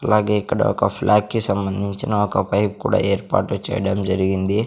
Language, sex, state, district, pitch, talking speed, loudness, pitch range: Telugu, male, Andhra Pradesh, Sri Satya Sai, 100 Hz, 155 wpm, -20 LUFS, 95-105 Hz